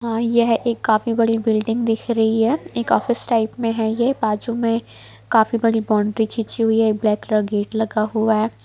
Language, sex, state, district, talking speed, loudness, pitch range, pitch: Hindi, female, Bihar, Sitamarhi, 215 wpm, -19 LUFS, 215-230 Hz, 225 Hz